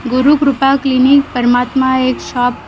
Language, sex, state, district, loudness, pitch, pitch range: Marathi, female, Maharashtra, Gondia, -12 LUFS, 260 Hz, 250-275 Hz